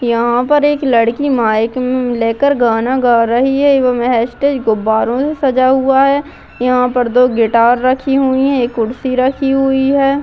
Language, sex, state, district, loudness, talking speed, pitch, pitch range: Hindi, female, Bihar, Gaya, -13 LUFS, 190 wpm, 255 Hz, 235-270 Hz